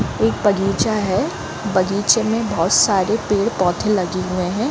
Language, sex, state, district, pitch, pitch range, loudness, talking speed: Hindi, female, Chhattisgarh, Bilaspur, 200 Hz, 185-215 Hz, -18 LUFS, 140 wpm